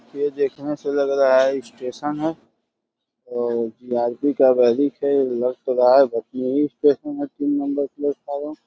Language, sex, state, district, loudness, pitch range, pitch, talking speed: Hindi, male, Uttar Pradesh, Deoria, -21 LUFS, 125-145 Hz, 140 Hz, 165 wpm